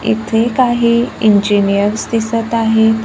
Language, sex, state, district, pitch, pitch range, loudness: Marathi, female, Maharashtra, Gondia, 225 Hz, 215-230 Hz, -13 LUFS